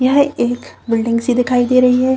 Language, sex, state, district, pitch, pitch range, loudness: Hindi, female, Chhattisgarh, Bilaspur, 250 Hz, 240-255 Hz, -15 LUFS